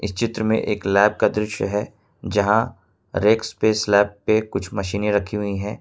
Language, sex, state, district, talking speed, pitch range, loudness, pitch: Hindi, male, Jharkhand, Ranchi, 175 wpm, 100-110 Hz, -21 LUFS, 105 Hz